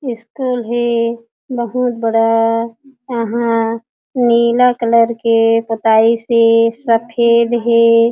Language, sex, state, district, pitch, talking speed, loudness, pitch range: Chhattisgarhi, female, Chhattisgarh, Jashpur, 230 Hz, 90 wpm, -14 LUFS, 230-240 Hz